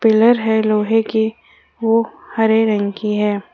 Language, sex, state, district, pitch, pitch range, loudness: Hindi, female, Jharkhand, Ranchi, 220 Hz, 210-225 Hz, -17 LUFS